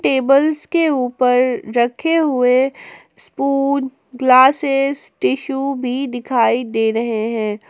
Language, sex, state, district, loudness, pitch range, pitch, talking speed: Hindi, female, Jharkhand, Palamu, -17 LUFS, 245-275 Hz, 260 Hz, 100 wpm